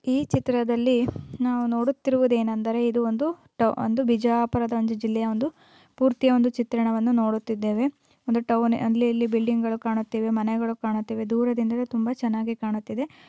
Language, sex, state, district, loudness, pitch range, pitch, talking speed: Kannada, female, Karnataka, Bijapur, -24 LUFS, 225-245 Hz, 235 Hz, 125 wpm